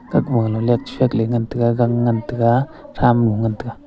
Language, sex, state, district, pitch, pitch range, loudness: Wancho, male, Arunachal Pradesh, Longding, 120 Hz, 115-120 Hz, -18 LUFS